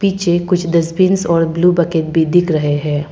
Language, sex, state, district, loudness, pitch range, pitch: Hindi, female, Arunachal Pradesh, Papum Pare, -14 LUFS, 160-180 Hz, 170 Hz